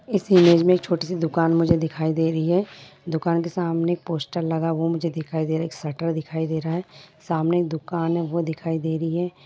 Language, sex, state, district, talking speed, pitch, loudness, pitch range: Hindi, female, Bihar, Lakhisarai, 245 wpm, 165 Hz, -23 LUFS, 160-170 Hz